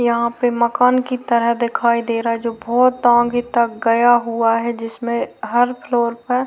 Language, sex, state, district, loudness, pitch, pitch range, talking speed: Hindi, female, Bihar, Vaishali, -17 LUFS, 235 Hz, 235-245 Hz, 195 wpm